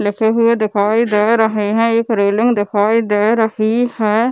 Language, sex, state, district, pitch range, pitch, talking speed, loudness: Hindi, female, Bihar, Gaya, 210-230 Hz, 220 Hz, 165 wpm, -15 LUFS